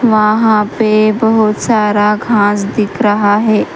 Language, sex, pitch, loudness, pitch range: Hindi, female, 215 Hz, -11 LUFS, 210-220 Hz